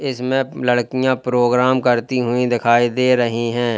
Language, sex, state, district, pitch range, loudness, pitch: Hindi, male, Uttar Pradesh, Lalitpur, 120-130 Hz, -17 LUFS, 125 Hz